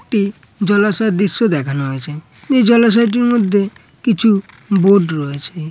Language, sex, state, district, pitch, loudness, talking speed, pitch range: Bengali, female, West Bengal, Purulia, 200 Hz, -15 LUFS, 95 wpm, 155-225 Hz